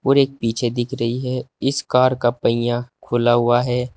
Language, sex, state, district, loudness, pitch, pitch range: Hindi, male, Uttar Pradesh, Saharanpur, -19 LUFS, 120 Hz, 120-130 Hz